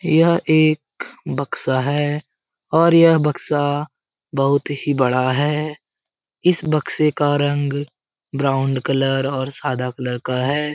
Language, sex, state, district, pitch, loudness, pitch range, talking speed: Hindi, male, Bihar, Jamui, 145 Hz, -19 LUFS, 135-150 Hz, 125 wpm